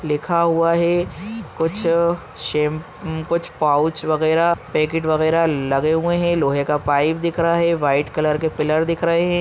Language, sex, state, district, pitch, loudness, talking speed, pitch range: Hindi, male, Chhattisgarh, Bastar, 160 Hz, -19 LUFS, 170 wpm, 155-170 Hz